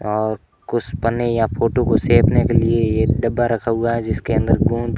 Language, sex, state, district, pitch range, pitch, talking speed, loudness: Hindi, male, Rajasthan, Barmer, 110-120 Hz, 115 Hz, 205 wpm, -18 LUFS